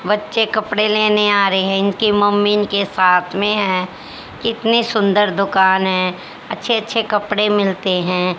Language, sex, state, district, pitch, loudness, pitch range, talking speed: Hindi, female, Haryana, Jhajjar, 205 Hz, -16 LUFS, 190-210 Hz, 150 wpm